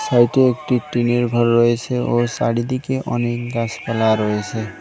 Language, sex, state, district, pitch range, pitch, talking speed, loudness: Bengali, male, West Bengal, Cooch Behar, 115-125 Hz, 120 Hz, 125 wpm, -18 LUFS